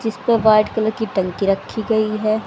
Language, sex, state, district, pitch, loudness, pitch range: Hindi, female, Haryana, Rohtak, 215 Hz, -18 LUFS, 215-220 Hz